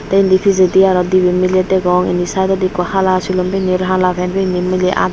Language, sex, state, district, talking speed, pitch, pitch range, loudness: Chakma, female, Tripura, Unakoti, 220 wpm, 185 Hz, 180-190 Hz, -14 LUFS